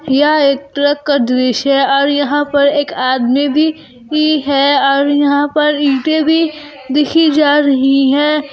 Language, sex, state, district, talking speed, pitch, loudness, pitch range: Hindi, female, Jharkhand, Garhwa, 155 wpm, 285 Hz, -12 LUFS, 275-300 Hz